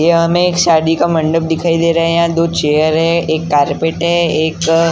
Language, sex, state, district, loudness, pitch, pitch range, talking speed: Hindi, male, Maharashtra, Gondia, -13 LUFS, 165 Hz, 160-170 Hz, 230 wpm